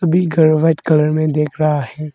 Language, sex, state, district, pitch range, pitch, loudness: Hindi, male, Arunachal Pradesh, Longding, 150-160 Hz, 155 Hz, -15 LUFS